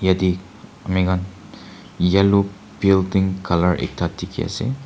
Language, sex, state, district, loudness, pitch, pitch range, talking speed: Nagamese, male, Nagaland, Kohima, -20 LUFS, 95 Hz, 90-100 Hz, 110 wpm